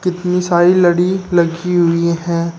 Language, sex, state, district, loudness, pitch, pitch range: Hindi, male, Uttar Pradesh, Shamli, -14 LUFS, 175 Hz, 170-180 Hz